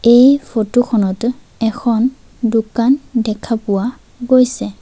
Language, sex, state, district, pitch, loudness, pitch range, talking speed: Assamese, female, Assam, Sonitpur, 235 Hz, -15 LUFS, 220-250 Hz, 100 wpm